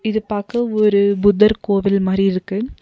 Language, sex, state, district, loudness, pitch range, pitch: Tamil, female, Tamil Nadu, Nilgiris, -17 LUFS, 200-220 Hz, 205 Hz